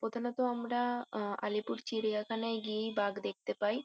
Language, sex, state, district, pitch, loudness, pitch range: Bengali, female, West Bengal, Kolkata, 225 Hz, -36 LUFS, 210-240 Hz